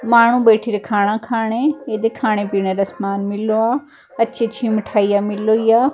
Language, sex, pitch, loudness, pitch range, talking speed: Punjabi, female, 220 Hz, -17 LUFS, 205-235 Hz, 160 wpm